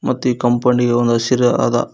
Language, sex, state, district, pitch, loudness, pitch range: Kannada, male, Karnataka, Koppal, 120 Hz, -16 LUFS, 120-125 Hz